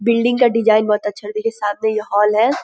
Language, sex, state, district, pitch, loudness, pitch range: Hindi, female, Uttar Pradesh, Gorakhpur, 220 Hz, -17 LUFS, 210-230 Hz